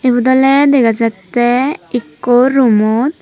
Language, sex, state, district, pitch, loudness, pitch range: Chakma, female, Tripura, Dhalai, 250 Hz, -12 LUFS, 230-265 Hz